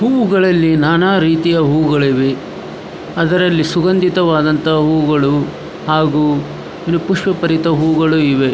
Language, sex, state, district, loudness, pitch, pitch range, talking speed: Kannada, male, Karnataka, Dharwad, -13 LUFS, 160 Hz, 150-175 Hz, 85 wpm